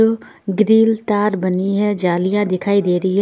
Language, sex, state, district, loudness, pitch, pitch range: Hindi, female, Punjab, Fazilka, -17 LUFS, 200 Hz, 185-210 Hz